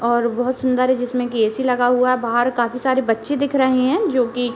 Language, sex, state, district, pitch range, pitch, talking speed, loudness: Hindi, female, Uttar Pradesh, Deoria, 240-260 Hz, 250 Hz, 250 wpm, -18 LUFS